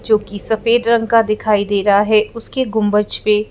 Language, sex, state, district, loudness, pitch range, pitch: Hindi, female, Madhya Pradesh, Bhopal, -15 LUFS, 210-230 Hz, 215 Hz